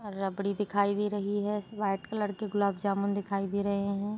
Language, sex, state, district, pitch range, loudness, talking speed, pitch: Hindi, female, Jharkhand, Sahebganj, 200-205 Hz, -31 LUFS, 215 wpm, 200 Hz